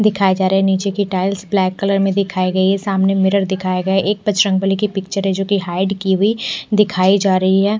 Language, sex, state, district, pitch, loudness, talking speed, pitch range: Hindi, male, Odisha, Nuapada, 195 Hz, -16 LUFS, 230 wpm, 190-200 Hz